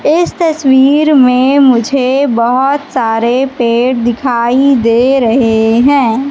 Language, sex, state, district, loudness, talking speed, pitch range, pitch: Hindi, female, Madhya Pradesh, Katni, -10 LUFS, 105 wpm, 235-275 Hz, 260 Hz